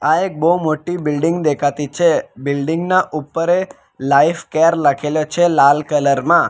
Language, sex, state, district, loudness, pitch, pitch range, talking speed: Gujarati, male, Gujarat, Valsad, -16 LUFS, 155 Hz, 145-170 Hz, 165 wpm